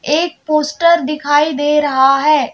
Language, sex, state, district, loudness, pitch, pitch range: Hindi, female, Madhya Pradesh, Bhopal, -13 LUFS, 300 Hz, 290-305 Hz